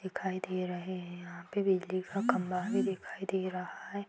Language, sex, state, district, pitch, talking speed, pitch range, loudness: Hindi, female, Uttar Pradesh, Budaun, 185 Hz, 205 wpm, 180-195 Hz, -35 LUFS